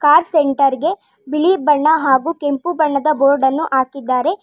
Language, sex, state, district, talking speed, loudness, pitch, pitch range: Kannada, female, Karnataka, Bangalore, 135 wpm, -15 LUFS, 295 Hz, 275-320 Hz